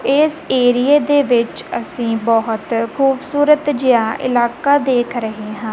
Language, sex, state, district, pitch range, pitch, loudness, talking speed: Punjabi, female, Punjab, Kapurthala, 230-285 Hz, 245 Hz, -16 LUFS, 125 wpm